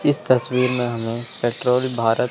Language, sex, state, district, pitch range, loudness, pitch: Hindi, male, Chandigarh, Chandigarh, 120-125 Hz, -21 LUFS, 125 Hz